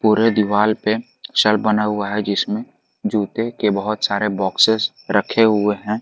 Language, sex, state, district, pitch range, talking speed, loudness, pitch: Hindi, male, Jharkhand, Garhwa, 105-115 Hz, 160 wpm, -18 LUFS, 105 Hz